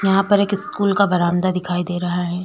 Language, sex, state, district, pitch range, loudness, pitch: Hindi, female, Uttar Pradesh, Jyotiba Phule Nagar, 175-200 Hz, -19 LUFS, 185 Hz